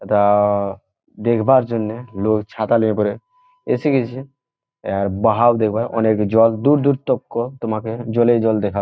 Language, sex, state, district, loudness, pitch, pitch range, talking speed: Bengali, male, West Bengal, Jhargram, -18 LUFS, 115 Hz, 105-125 Hz, 150 wpm